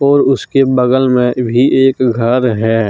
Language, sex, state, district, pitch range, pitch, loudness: Hindi, male, Jharkhand, Deoghar, 120-135 Hz, 125 Hz, -12 LUFS